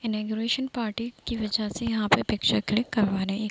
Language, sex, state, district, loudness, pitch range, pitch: Hindi, female, Uttar Pradesh, Deoria, -27 LUFS, 210-230 Hz, 215 Hz